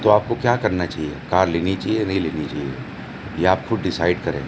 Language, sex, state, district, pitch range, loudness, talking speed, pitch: Hindi, male, Maharashtra, Mumbai Suburban, 90-105 Hz, -21 LUFS, 230 wpm, 95 Hz